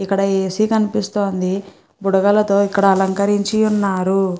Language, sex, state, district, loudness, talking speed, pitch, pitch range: Telugu, female, Andhra Pradesh, Guntur, -17 LUFS, 95 wpm, 200 Hz, 195-205 Hz